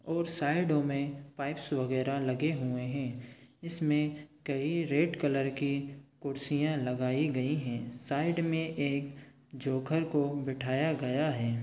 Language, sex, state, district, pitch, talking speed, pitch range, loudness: Hindi, male, Chhattisgarh, Sukma, 140 Hz, 135 wpm, 130-150 Hz, -32 LUFS